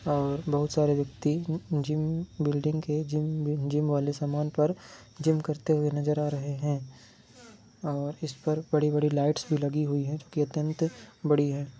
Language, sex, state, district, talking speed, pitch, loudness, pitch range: Hindi, male, Bihar, Lakhisarai, 170 wpm, 150 Hz, -29 LUFS, 145-155 Hz